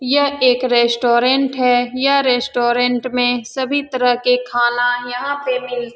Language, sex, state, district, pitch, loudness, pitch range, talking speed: Hindi, female, Bihar, Saran, 250 Hz, -16 LUFS, 245-260 Hz, 150 wpm